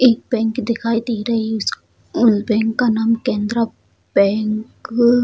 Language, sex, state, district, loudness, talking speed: Hindi, female, Bihar, Jamui, -18 LUFS, 150 wpm